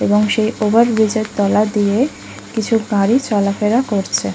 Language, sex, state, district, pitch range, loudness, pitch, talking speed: Bengali, female, West Bengal, Kolkata, 205-225 Hz, -16 LUFS, 215 Hz, 150 wpm